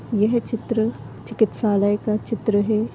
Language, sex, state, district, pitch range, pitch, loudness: Hindi, female, Uttar Pradesh, Deoria, 210-225 Hz, 220 Hz, -21 LUFS